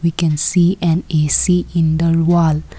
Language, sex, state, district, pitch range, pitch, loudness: English, female, Assam, Kamrup Metropolitan, 160-170 Hz, 165 Hz, -15 LUFS